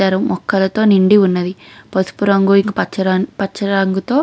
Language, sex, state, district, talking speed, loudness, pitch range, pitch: Telugu, female, Andhra Pradesh, Krishna, 140 wpm, -15 LUFS, 190-200 Hz, 195 Hz